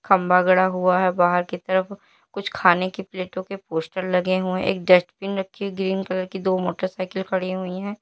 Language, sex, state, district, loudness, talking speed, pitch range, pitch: Hindi, female, Uttar Pradesh, Lalitpur, -22 LUFS, 195 wpm, 185-190 Hz, 185 Hz